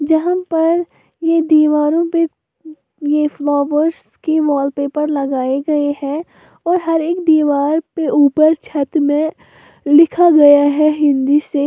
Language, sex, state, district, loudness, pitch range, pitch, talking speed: Hindi, female, Uttar Pradesh, Lalitpur, -15 LUFS, 290-325 Hz, 305 Hz, 135 wpm